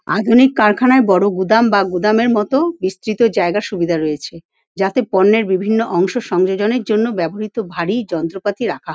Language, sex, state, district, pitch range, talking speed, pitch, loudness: Bengali, female, West Bengal, Paschim Medinipur, 185-225 Hz, 145 wpm, 210 Hz, -15 LUFS